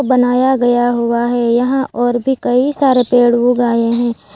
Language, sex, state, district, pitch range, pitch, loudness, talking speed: Hindi, female, Gujarat, Valsad, 240-255 Hz, 245 Hz, -13 LUFS, 180 wpm